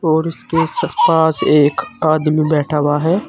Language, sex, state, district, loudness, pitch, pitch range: Hindi, male, Uttar Pradesh, Saharanpur, -15 LUFS, 155 Hz, 150-160 Hz